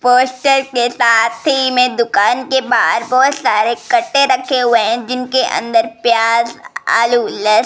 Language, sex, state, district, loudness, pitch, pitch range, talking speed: Hindi, female, Rajasthan, Jaipur, -13 LUFS, 245 Hz, 230-265 Hz, 150 wpm